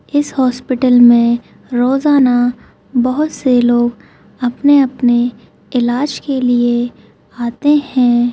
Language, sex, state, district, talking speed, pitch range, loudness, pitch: Hindi, female, Rajasthan, Nagaur, 100 wpm, 240-270 Hz, -14 LUFS, 245 Hz